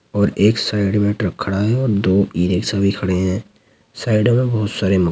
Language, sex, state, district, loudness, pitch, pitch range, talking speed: Hindi, male, Uttar Pradesh, Jyotiba Phule Nagar, -18 LUFS, 100 Hz, 95-110 Hz, 225 wpm